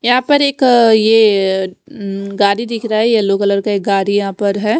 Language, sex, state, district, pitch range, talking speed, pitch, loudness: Hindi, female, Punjab, Fazilka, 200-230 Hz, 225 wpm, 205 Hz, -13 LUFS